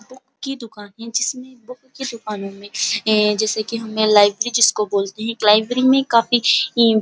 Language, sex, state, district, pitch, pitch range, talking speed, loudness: Hindi, female, Uttar Pradesh, Muzaffarnagar, 230 Hz, 210-250 Hz, 170 wpm, -18 LUFS